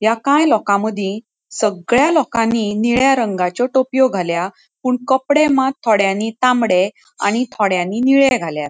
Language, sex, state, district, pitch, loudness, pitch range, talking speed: Konkani, female, Goa, North and South Goa, 230 Hz, -16 LUFS, 200-260 Hz, 125 wpm